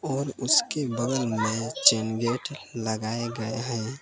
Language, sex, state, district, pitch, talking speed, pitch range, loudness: Hindi, male, Jharkhand, Palamu, 120 Hz, 135 wpm, 110-130 Hz, -26 LUFS